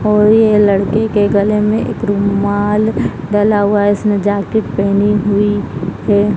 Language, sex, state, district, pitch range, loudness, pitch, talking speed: Hindi, female, Bihar, Purnia, 205-210 Hz, -13 LUFS, 205 Hz, 150 wpm